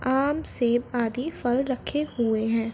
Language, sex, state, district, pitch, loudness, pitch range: Hindi, female, Uttar Pradesh, Varanasi, 245 Hz, -26 LUFS, 235-270 Hz